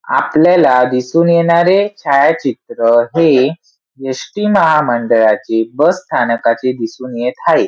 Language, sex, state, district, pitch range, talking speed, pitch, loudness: Marathi, male, Maharashtra, Sindhudurg, 120-170 Hz, 95 wpm, 130 Hz, -13 LUFS